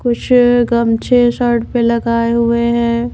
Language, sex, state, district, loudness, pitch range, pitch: Hindi, female, Bihar, Katihar, -13 LUFS, 235-245 Hz, 235 Hz